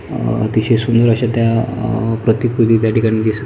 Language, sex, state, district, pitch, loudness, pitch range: Marathi, male, Maharashtra, Pune, 115 Hz, -15 LUFS, 110-115 Hz